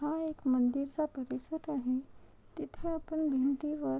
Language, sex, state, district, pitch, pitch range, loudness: Marathi, female, Maharashtra, Chandrapur, 290 Hz, 260-315 Hz, -34 LUFS